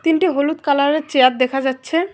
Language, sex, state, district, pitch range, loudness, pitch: Bengali, female, West Bengal, Alipurduar, 265-320 Hz, -17 LUFS, 285 Hz